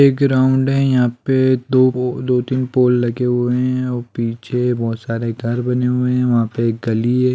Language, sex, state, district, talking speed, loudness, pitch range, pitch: Hindi, male, Bihar, East Champaran, 210 wpm, -17 LUFS, 120-130 Hz, 125 Hz